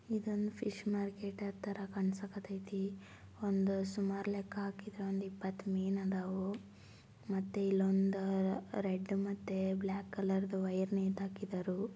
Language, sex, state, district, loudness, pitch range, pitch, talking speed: Kannada, female, Karnataka, Belgaum, -38 LUFS, 190-200 Hz, 195 Hz, 110 wpm